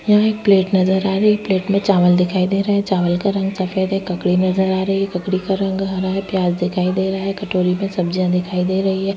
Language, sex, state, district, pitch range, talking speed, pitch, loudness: Hindi, female, Chhattisgarh, Sukma, 185-195 Hz, 275 wpm, 190 Hz, -18 LUFS